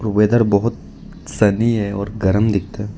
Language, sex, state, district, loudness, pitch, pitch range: Hindi, male, Arunachal Pradesh, Lower Dibang Valley, -17 LUFS, 105 Hz, 100-110 Hz